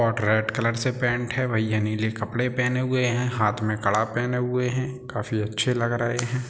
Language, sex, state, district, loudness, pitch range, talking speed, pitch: Hindi, male, Bihar, Sitamarhi, -25 LUFS, 110-125 Hz, 210 wpm, 120 Hz